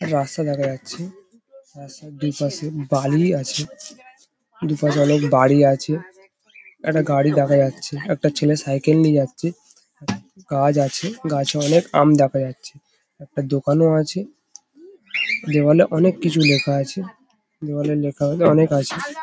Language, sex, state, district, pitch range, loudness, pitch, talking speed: Bengali, male, West Bengal, Paschim Medinipur, 145-185 Hz, -19 LUFS, 150 Hz, 120 wpm